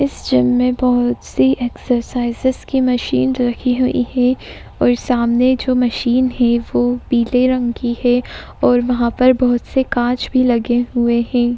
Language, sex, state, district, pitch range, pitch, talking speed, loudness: Hindi, female, Uttar Pradesh, Etah, 240-255 Hz, 245 Hz, 160 wpm, -16 LUFS